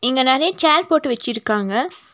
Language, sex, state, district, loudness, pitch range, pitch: Tamil, female, Tamil Nadu, Nilgiris, -17 LUFS, 240-320 Hz, 260 Hz